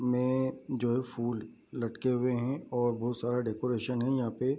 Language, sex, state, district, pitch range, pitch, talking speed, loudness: Hindi, male, Bihar, Bhagalpur, 120-130 Hz, 125 Hz, 170 wpm, -32 LUFS